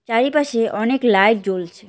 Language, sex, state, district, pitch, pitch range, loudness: Bengali, female, West Bengal, Cooch Behar, 225 Hz, 205-240 Hz, -17 LUFS